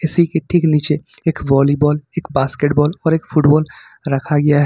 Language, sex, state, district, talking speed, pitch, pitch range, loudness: Hindi, male, Jharkhand, Ranchi, 180 wpm, 150 Hz, 145-165 Hz, -16 LUFS